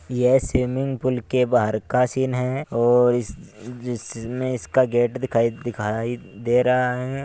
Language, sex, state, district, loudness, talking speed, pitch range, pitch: Hindi, male, Rajasthan, Churu, -22 LUFS, 155 wpm, 120-130 Hz, 125 Hz